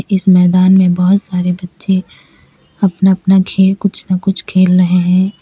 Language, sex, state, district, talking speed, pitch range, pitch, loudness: Hindi, female, Uttar Pradesh, Lalitpur, 165 wpm, 180-190 Hz, 190 Hz, -12 LUFS